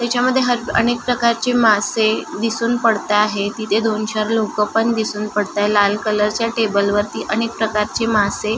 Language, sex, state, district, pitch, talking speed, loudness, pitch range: Marathi, female, Maharashtra, Nagpur, 220 Hz, 170 wpm, -18 LUFS, 210-230 Hz